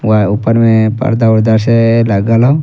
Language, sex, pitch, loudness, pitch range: Angika, male, 115 Hz, -10 LUFS, 110-115 Hz